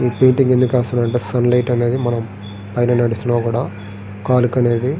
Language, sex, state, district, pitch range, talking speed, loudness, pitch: Telugu, male, Andhra Pradesh, Srikakulam, 115-125 Hz, 145 wpm, -17 LUFS, 120 Hz